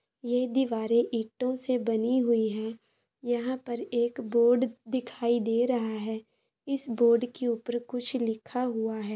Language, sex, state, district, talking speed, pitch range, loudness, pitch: Hindi, female, Bihar, Araria, 150 wpm, 225-250 Hz, -29 LUFS, 235 Hz